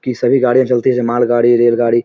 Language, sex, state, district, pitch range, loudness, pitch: Hindi, male, Bihar, Samastipur, 120-125 Hz, -13 LUFS, 120 Hz